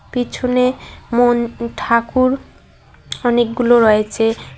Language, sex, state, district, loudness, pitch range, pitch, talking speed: Bengali, female, West Bengal, Cooch Behar, -16 LUFS, 230-250 Hz, 240 Hz, 65 wpm